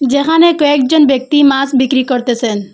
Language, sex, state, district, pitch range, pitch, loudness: Bengali, female, Assam, Hailakandi, 255-290 Hz, 270 Hz, -11 LUFS